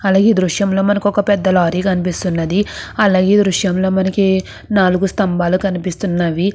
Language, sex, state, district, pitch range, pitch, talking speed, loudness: Telugu, female, Andhra Pradesh, Krishna, 180-200 Hz, 190 Hz, 155 wpm, -15 LUFS